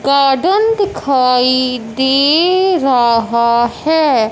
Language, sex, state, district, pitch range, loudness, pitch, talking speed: Hindi, male, Punjab, Fazilka, 240-320 Hz, -12 LUFS, 265 Hz, 70 wpm